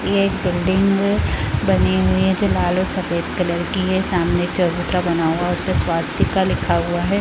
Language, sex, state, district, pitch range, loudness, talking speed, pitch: Hindi, female, Chhattisgarh, Balrampur, 170-190 Hz, -19 LUFS, 215 wpm, 175 Hz